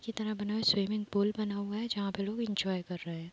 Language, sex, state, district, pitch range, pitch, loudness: Hindi, female, Uttar Pradesh, Deoria, 195-215 Hz, 205 Hz, -33 LUFS